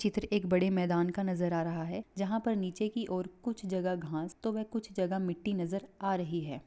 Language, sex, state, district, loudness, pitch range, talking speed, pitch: Hindi, female, Bihar, Bhagalpur, -34 LUFS, 175-210 Hz, 200 wpm, 190 Hz